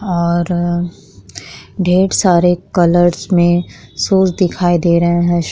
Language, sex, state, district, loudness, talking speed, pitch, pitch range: Hindi, female, Uttar Pradesh, Muzaffarnagar, -14 LUFS, 110 wpm, 175 Hz, 170-180 Hz